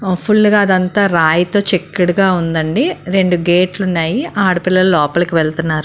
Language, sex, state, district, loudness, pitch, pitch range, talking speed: Telugu, female, Andhra Pradesh, Srikakulam, -13 LUFS, 185 Hz, 170-195 Hz, 135 wpm